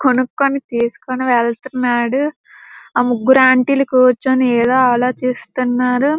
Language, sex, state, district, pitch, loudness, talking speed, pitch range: Telugu, female, Andhra Pradesh, Srikakulam, 255 Hz, -15 LUFS, 95 wpm, 245-265 Hz